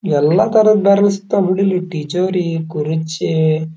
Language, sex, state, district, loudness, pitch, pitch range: Kannada, male, Karnataka, Dharwad, -15 LUFS, 175 Hz, 160-195 Hz